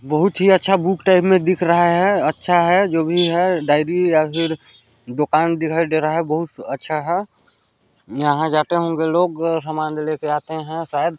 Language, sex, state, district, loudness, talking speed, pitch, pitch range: Hindi, male, Chhattisgarh, Balrampur, -18 LUFS, 200 wpm, 165 Hz, 155-175 Hz